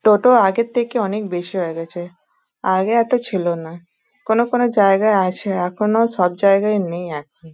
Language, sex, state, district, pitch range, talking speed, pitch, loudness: Bengali, female, West Bengal, Dakshin Dinajpur, 175-225 Hz, 160 wpm, 195 Hz, -18 LUFS